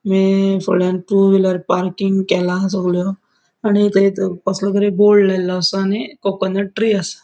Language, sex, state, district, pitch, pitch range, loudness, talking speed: Konkani, male, Goa, North and South Goa, 195 Hz, 185-200 Hz, -16 LUFS, 150 wpm